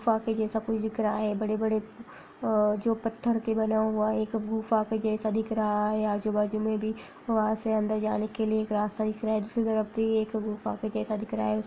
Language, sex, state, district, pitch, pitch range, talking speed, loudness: Hindi, female, Bihar, Lakhisarai, 220 Hz, 215-220 Hz, 230 wpm, -29 LUFS